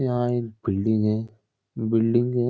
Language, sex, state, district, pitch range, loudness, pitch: Hindi, male, Bihar, Darbhanga, 110-120 Hz, -24 LUFS, 115 Hz